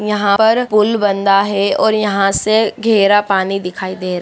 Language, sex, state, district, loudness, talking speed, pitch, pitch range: Hindi, male, Bihar, Jahanabad, -14 LUFS, 200 wpm, 205 Hz, 195-215 Hz